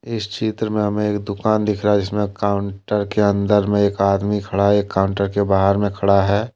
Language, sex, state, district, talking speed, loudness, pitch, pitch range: Hindi, male, Jharkhand, Deoghar, 220 wpm, -19 LUFS, 100 Hz, 100-105 Hz